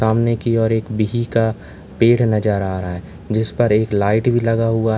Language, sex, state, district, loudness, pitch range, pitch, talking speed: Hindi, male, Uttar Pradesh, Lalitpur, -18 LUFS, 105-115 Hz, 110 Hz, 230 wpm